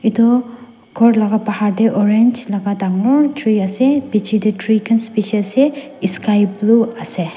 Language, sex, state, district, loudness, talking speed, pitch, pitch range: Nagamese, female, Nagaland, Dimapur, -15 LUFS, 155 wpm, 220 Hz, 205-240 Hz